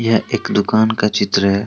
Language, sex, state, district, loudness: Hindi, male, Jharkhand, Deoghar, -16 LUFS